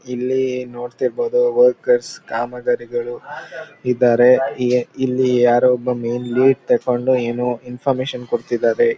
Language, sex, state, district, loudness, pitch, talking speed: Kannada, male, Karnataka, Mysore, -18 LUFS, 125 Hz, 100 wpm